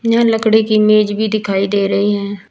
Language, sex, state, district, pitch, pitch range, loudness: Hindi, female, Uttar Pradesh, Saharanpur, 215 Hz, 200-220 Hz, -14 LUFS